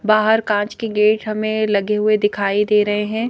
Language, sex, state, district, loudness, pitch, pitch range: Hindi, female, Madhya Pradesh, Bhopal, -17 LUFS, 215 Hz, 210-215 Hz